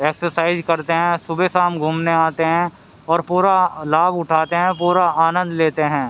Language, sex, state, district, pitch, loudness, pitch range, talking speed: Hindi, male, Haryana, Rohtak, 165 Hz, -18 LUFS, 160-175 Hz, 165 wpm